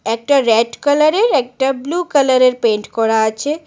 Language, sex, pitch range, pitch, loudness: Bengali, female, 230-290 Hz, 260 Hz, -15 LUFS